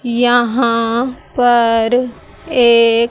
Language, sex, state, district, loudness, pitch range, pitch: Hindi, female, Haryana, Jhajjar, -13 LUFS, 230-245 Hz, 240 Hz